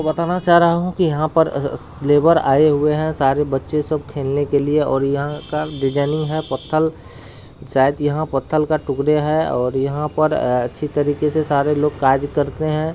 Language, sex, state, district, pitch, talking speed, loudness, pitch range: Hindi, male, Bihar, Araria, 150 Hz, 195 wpm, -18 LUFS, 140-155 Hz